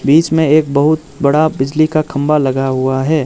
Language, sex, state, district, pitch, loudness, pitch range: Hindi, male, Arunachal Pradesh, Lower Dibang Valley, 150 Hz, -13 LUFS, 135-155 Hz